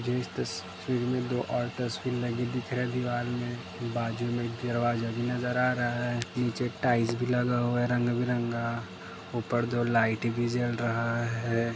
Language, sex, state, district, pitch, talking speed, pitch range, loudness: Hindi, male, Maharashtra, Dhule, 120 Hz, 180 wpm, 120-125 Hz, -30 LUFS